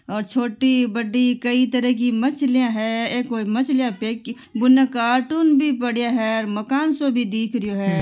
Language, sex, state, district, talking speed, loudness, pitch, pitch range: Marwari, female, Rajasthan, Nagaur, 155 wpm, -20 LUFS, 245 Hz, 225-255 Hz